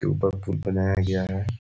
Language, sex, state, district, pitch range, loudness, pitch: Hindi, male, Bihar, Muzaffarpur, 95-100 Hz, -25 LUFS, 95 Hz